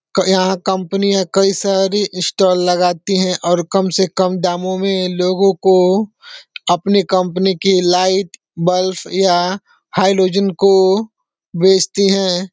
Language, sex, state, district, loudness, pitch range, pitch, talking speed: Hindi, male, Uttar Pradesh, Deoria, -15 LUFS, 180-195 Hz, 190 Hz, 120 wpm